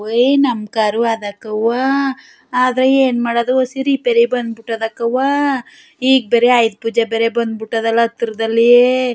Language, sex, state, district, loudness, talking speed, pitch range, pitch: Kannada, female, Karnataka, Chamarajanagar, -15 LUFS, 125 wpm, 225-255 Hz, 235 Hz